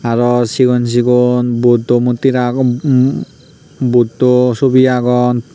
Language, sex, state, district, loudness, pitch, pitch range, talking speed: Chakma, male, Tripura, Unakoti, -12 LUFS, 125 Hz, 120-130 Hz, 95 wpm